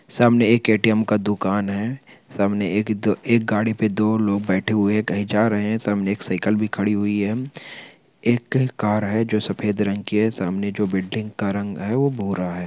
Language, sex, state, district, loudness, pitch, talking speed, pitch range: Hindi, male, Bihar, Begusarai, -21 LUFS, 105 Hz, 225 wpm, 100-110 Hz